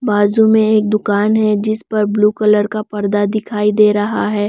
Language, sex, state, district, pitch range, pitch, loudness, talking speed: Hindi, female, Bihar, West Champaran, 205-215 Hz, 210 Hz, -14 LUFS, 200 wpm